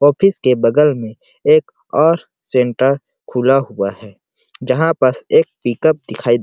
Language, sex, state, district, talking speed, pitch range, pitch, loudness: Hindi, male, Chhattisgarh, Sarguja, 150 wpm, 120-165 Hz, 135 Hz, -15 LUFS